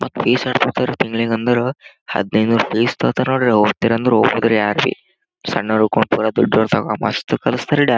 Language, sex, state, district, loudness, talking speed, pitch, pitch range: Kannada, male, Karnataka, Gulbarga, -17 LUFS, 175 wpm, 115 Hz, 105-120 Hz